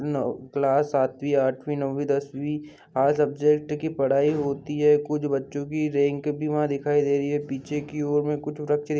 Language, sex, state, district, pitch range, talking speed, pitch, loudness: Hindi, male, Bihar, Sitamarhi, 140-150 Hz, 180 wpm, 145 Hz, -25 LUFS